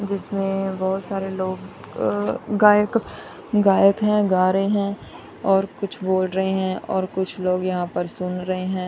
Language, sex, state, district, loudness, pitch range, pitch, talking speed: Hindi, female, Punjab, Kapurthala, -21 LUFS, 185-200 Hz, 190 Hz, 160 wpm